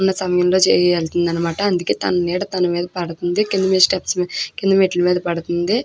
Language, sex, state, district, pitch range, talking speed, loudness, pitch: Telugu, female, Andhra Pradesh, Krishna, 175-190 Hz, 175 wpm, -18 LUFS, 180 Hz